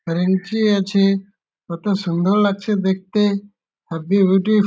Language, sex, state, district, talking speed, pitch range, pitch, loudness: Bengali, male, West Bengal, Malda, 115 wpm, 190-205 Hz, 195 Hz, -18 LUFS